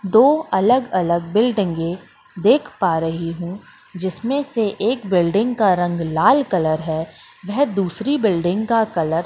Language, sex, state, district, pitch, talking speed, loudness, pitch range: Hindi, female, Madhya Pradesh, Katni, 190 Hz, 145 wpm, -19 LUFS, 170-230 Hz